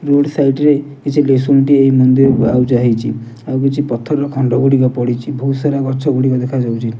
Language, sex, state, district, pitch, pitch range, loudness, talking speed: Odia, male, Odisha, Nuapada, 135 Hz, 125-140 Hz, -14 LUFS, 160 wpm